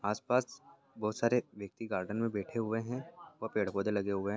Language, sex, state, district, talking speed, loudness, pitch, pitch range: Hindi, male, Chhattisgarh, Bilaspur, 205 wpm, -35 LUFS, 110 Hz, 100-120 Hz